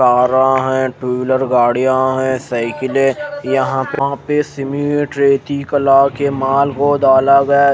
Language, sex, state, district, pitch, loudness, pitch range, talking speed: Hindi, male, Odisha, Khordha, 135 Hz, -14 LUFS, 130-140 Hz, 125 wpm